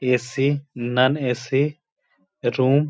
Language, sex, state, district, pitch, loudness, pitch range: Hindi, male, Bihar, Gaya, 130 Hz, -22 LUFS, 125-140 Hz